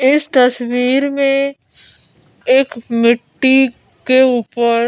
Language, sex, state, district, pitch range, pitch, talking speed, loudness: Hindi, female, Madhya Pradesh, Bhopal, 240-270 Hz, 255 Hz, 85 wpm, -14 LUFS